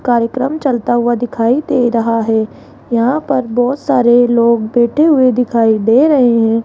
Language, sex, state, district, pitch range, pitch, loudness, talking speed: Hindi, female, Rajasthan, Jaipur, 230-260 Hz, 240 Hz, -13 LUFS, 160 wpm